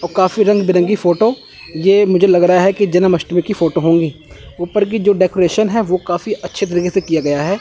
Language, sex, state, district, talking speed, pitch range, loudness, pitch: Hindi, male, Chandigarh, Chandigarh, 220 wpm, 175-205 Hz, -14 LUFS, 185 Hz